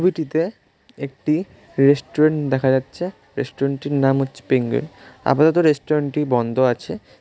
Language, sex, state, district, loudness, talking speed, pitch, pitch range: Bengali, male, West Bengal, North 24 Parganas, -20 LUFS, 125 wpm, 140 Hz, 135-155 Hz